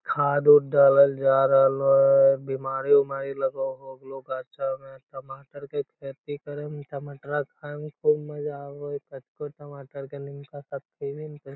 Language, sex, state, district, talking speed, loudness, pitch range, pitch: Magahi, male, Bihar, Lakhisarai, 180 wpm, -23 LUFS, 135-145 Hz, 140 Hz